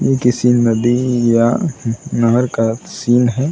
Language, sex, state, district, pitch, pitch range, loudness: Hindi, male, Bihar, Saran, 120 Hz, 115-125 Hz, -15 LUFS